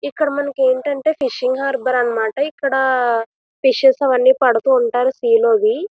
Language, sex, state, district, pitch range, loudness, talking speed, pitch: Telugu, female, Andhra Pradesh, Visakhapatnam, 250-290 Hz, -16 LUFS, 130 wpm, 265 Hz